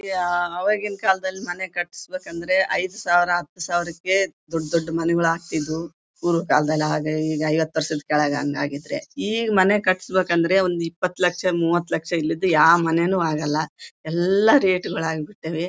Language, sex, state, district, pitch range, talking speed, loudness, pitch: Kannada, female, Karnataka, Bellary, 160-185 Hz, 135 wpm, -22 LUFS, 175 Hz